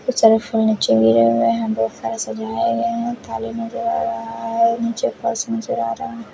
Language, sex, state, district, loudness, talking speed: Hindi, male, Odisha, Khordha, -19 LUFS, 160 wpm